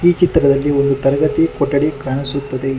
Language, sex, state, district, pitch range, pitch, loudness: Kannada, male, Karnataka, Bangalore, 135-150 Hz, 140 Hz, -16 LUFS